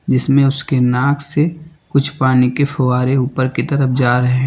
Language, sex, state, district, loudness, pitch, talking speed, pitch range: Hindi, male, Uttar Pradesh, Lucknow, -15 LUFS, 135 Hz, 190 wpm, 125-145 Hz